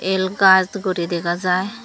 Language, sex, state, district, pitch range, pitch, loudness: Chakma, female, Tripura, Dhalai, 180-190 Hz, 185 Hz, -18 LUFS